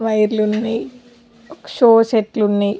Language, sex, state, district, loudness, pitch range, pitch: Telugu, female, Telangana, Karimnagar, -16 LUFS, 215-235 Hz, 225 Hz